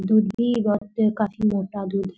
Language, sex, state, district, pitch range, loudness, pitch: Hindi, female, Bihar, Gopalganj, 195-215 Hz, -23 LUFS, 210 Hz